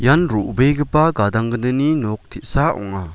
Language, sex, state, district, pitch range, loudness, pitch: Garo, male, Meghalaya, West Garo Hills, 105-145 Hz, -18 LUFS, 125 Hz